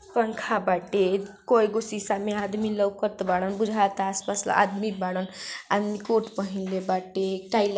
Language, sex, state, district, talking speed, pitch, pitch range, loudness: Bhojpuri, female, Uttar Pradesh, Ghazipur, 160 wpm, 200 Hz, 190-215 Hz, -26 LUFS